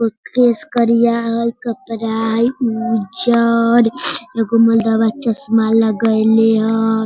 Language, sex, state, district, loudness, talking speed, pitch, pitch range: Hindi, female, Bihar, Sitamarhi, -15 LUFS, 95 wpm, 230 Hz, 225-235 Hz